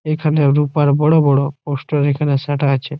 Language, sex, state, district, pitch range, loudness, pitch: Bengali, male, West Bengal, Jhargram, 140-150 Hz, -16 LUFS, 145 Hz